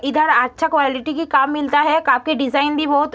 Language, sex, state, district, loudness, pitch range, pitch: Hindi, female, Uttar Pradesh, Deoria, -17 LUFS, 275-310 Hz, 295 Hz